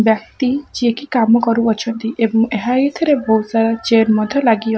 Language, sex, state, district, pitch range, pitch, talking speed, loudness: Odia, female, Odisha, Khordha, 225-245 Hz, 230 Hz, 190 wpm, -16 LUFS